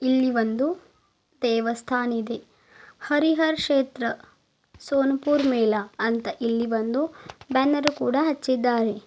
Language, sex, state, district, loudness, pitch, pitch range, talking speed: Kannada, female, Karnataka, Bidar, -24 LUFS, 260 Hz, 230-290 Hz, 100 wpm